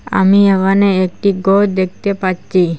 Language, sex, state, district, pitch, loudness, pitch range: Bengali, female, Assam, Hailakandi, 195 Hz, -13 LUFS, 185-200 Hz